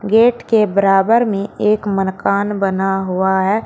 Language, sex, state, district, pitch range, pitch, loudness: Hindi, female, Uttar Pradesh, Shamli, 195-215 Hz, 200 Hz, -15 LUFS